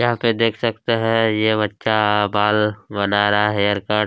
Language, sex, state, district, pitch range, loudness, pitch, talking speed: Hindi, male, Chhattisgarh, Kabirdham, 105-115 Hz, -18 LUFS, 105 Hz, 205 wpm